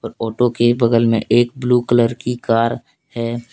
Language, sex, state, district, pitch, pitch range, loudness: Hindi, male, Jharkhand, Deoghar, 120 Hz, 115-120 Hz, -17 LUFS